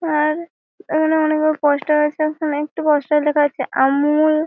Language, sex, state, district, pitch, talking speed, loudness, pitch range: Bengali, female, West Bengal, Malda, 305 Hz, 145 wpm, -18 LUFS, 295-310 Hz